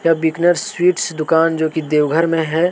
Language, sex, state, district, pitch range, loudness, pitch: Hindi, male, Jharkhand, Deoghar, 160-175 Hz, -16 LUFS, 165 Hz